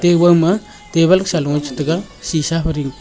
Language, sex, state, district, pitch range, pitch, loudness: Wancho, male, Arunachal Pradesh, Longding, 155-180 Hz, 165 Hz, -16 LUFS